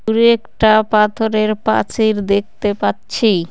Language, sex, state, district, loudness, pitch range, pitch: Bengali, female, West Bengal, Cooch Behar, -15 LUFS, 205-220 Hz, 215 Hz